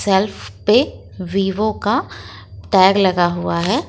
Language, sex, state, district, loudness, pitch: Hindi, female, Jharkhand, Ranchi, -17 LUFS, 185 Hz